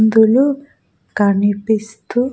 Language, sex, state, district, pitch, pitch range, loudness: Telugu, female, Andhra Pradesh, Sri Satya Sai, 220 Hz, 205-250 Hz, -15 LUFS